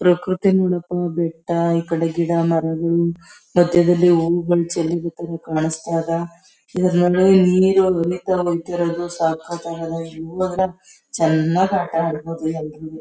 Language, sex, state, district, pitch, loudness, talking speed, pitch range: Kannada, female, Karnataka, Chamarajanagar, 170 Hz, -19 LUFS, 95 wpm, 165-180 Hz